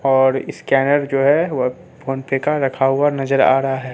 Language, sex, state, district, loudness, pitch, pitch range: Hindi, male, Bihar, Katihar, -17 LUFS, 135 Hz, 135-140 Hz